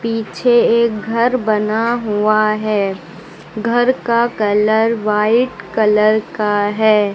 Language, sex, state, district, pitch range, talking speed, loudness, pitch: Hindi, female, Uttar Pradesh, Lucknow, 210-235 Hz, 110 wpm, -15 LUFS, 220 Hz